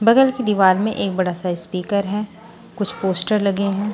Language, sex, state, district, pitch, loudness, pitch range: Hindi, female, Punjab, Pathankot, 200 Hz, -19 LUFS, 190-215 Hz